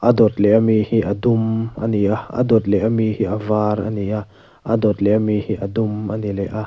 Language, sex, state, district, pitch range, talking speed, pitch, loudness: Mizo, male, Mizoram, Aizawl, 105-110 Hz, 245 wpm, 110 Hz, -18 LUFS